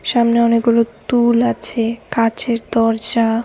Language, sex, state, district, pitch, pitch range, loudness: Bengali, female, West Bengal, Cooch Behar, 230 Hz, 230-235 Hz, -15 LUFS